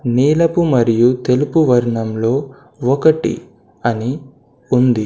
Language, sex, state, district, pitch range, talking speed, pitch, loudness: Telugu, male, Telangana, Komaram Bheem, 120-145 Hz, 85 wpm, 125 Hz, -16 LUFS